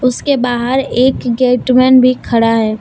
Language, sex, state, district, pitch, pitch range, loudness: Hindi, female, Jharkhand, Deoghar, 250 Hz, 240-255 Hz, -12 LUFS